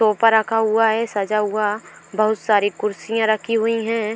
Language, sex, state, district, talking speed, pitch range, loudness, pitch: Hindi, female, Uttar Pradesh, Etah, 175 wpm, 210-225 Hz, -19 LUFS, 220 Hz